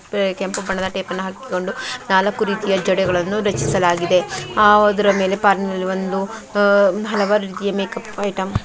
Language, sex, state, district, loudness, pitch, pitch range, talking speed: Kannada, female, Karnataka, Mysore, -18 LUFS, 195 Hz, 190-205 Hz, 125 wpm